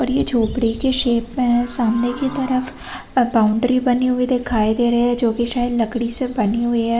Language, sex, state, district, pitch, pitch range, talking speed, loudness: Hindi, female, Uttar Pradesh, Hamirpur, 240 Hz, 235-255 Hz, 205 wpm, -18 LUFS